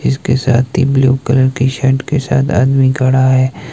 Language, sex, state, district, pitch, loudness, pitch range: Hindi, male, Himachal Pradesh, Shimla, 130 Hz, -12 LUFS, 130-135 Hz